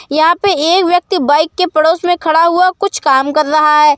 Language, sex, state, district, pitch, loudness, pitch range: Hindi, female, Uttar Pradesh, Muzaffarnagar, 325 Hz, -11 LUFS, 305-360 Hz